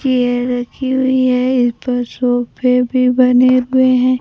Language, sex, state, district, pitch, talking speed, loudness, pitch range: Hindi, female, Bihar, Kaimur, 250 Hz, 155 wpm, -14 LUFS, 245-255 Hz